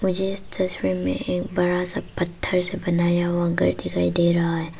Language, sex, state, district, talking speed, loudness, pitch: Hindi, female, Arunachal Pradesh, Papum Pare, 200 wpm, -20 LUFS, 175 Hz